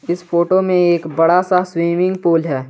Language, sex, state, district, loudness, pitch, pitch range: Hindi, male, Jharkhand, Garhwa, -15 LUFS, 175 Hz, 165-180 Hz